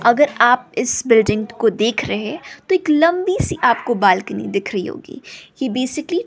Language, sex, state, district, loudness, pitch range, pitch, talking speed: Hindi, female, Bihar, West Champaran, -17 LUFS, 230-325 Hz, 255 Hz, 180 wpm